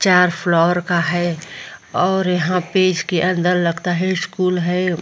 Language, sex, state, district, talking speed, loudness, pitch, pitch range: Hindi, female, Bihar, Vaishali, 155 wpm, -18 LUFS, 180 Hz, 175-180 Hz